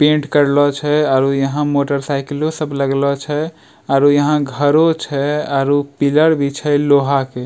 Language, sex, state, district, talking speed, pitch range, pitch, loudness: Angika, male, Bihar, Bhagalpur, 170 wpm, 140-150 Hz, 145 Hz, -15 LUFS